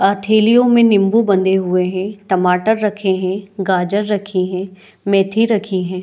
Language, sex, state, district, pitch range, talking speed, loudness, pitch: Hindi, female, Chhattisgarh, Bilaspur, 185-210 Hz, 160 wpm, -15 LUFS, 195 Hz